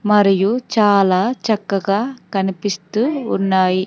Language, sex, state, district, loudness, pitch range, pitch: Telugu, female, Andhra Pradesh, Sri Satya Sai, -17 LUFS, 195-225 Hz, 205 Hz